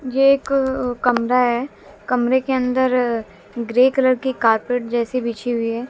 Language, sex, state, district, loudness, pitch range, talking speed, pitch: Hindi, female, Haryana, Jhajjar, -19 LUFS, 235-260 Hz, 150 wpm, 250 Hz